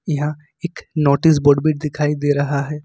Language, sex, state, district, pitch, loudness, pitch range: Hindi, male, Jharkhand, Ranchi, 150 Hz, -17 LUFS, 145-155 Hz